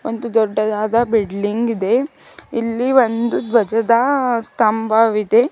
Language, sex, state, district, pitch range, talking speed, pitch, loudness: Kannada, female, Karnataka, Bidar, 215-235 Hz, 85 wpm, 230 Hz, -17 LUFS